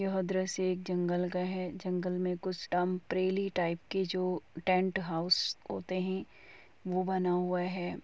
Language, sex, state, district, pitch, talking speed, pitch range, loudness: Hindi, female, Uttar Pradesh, Muzaffarnagar, 185 Hz, 155 wpm, 180-185 Hz, -33 LUFS